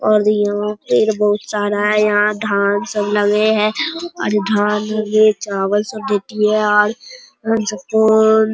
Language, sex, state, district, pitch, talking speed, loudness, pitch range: Hindi, male, Bihar, Bhagalpur, 210 Hz, 120 wpm, -16 LUFS, 210-215 Hz